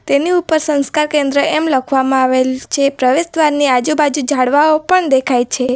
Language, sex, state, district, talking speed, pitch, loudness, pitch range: Gujarati, female, Gujarat, Valsad, 155 wpm, 280 Hz, -14 LUFS, 260-305 Hz